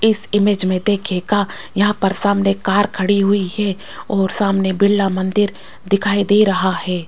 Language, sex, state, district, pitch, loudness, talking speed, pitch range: Hindi, female, Rajasthan, Jaipur, 200 Hz, -17 LUFS, 160 wpm, 190-205 Hz